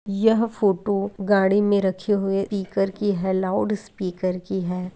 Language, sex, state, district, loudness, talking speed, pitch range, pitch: Hindi, female, Bihar, Lakhisarai, -22 LUFS, 145 wpm, 190-205 Hz, 195 Hz